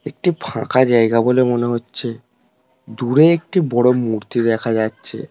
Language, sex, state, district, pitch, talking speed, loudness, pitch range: Bengali, male, West Bengal, Paschim Medinipur, 120 Hz, 145 wpm, -17 LUFS, 115-130 Hz